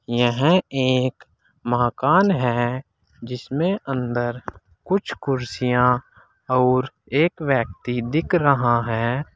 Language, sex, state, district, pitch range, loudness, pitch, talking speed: Hindi, male, Uttar Pradesh, Saharanpur, 120-145 Hz, -21 LUFS, 130 Hz, 90 wpm